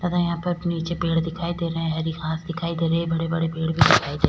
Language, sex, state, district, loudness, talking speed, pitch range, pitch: Hindi, female, Maharashtra, Chandrapur, -23 LUFS, 295 wpm, 160-170 Hz, 165 Hz